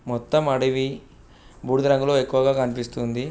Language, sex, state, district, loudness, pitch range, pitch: Telugu, male, Andhra Pradesh, Guntur, -22 LUFS, 125-135 Hz, 130 Hz